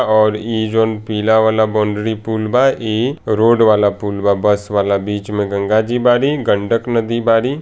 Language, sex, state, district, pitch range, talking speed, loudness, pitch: Bhojpuri, male, Bihar, Saran, 105-115 Hz, 180 wpm, -15 LUFS, 110 Hz